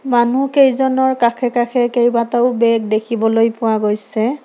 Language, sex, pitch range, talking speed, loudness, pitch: Assamese, female, 225-255 Hz, 110 wpm, -15 LUFS, 240 Hz